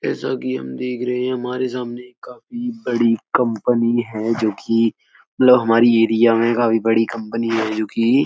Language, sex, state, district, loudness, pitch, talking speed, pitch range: Hindi, male, Uttar Pradesh, Etah, -18 LUFS, 115 Hz, 180 wpm, 115-125 Hz